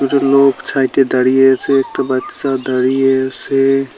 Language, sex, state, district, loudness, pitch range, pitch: Bengali, male, West Bengal, Cooch Behar, -14 LUFS, 130-135 Hz, 135 Hz